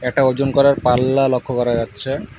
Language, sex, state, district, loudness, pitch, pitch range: Bengali, male, West Bengal, Alipurduar, -17 LUFS, 130 Hz, 125-135 Hz